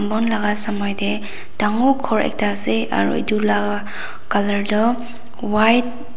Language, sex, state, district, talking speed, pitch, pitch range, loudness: Nagamese, female, Nagaland, Dimapur, 145 wpm, 210 Hz, 200-230 Hz, -18 LUFS